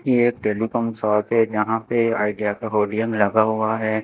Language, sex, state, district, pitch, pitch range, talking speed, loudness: Hindi, male, Haryana, Jhajjar, 110 Hz, 105-115 Hz, 165 wpm, -21 LUFS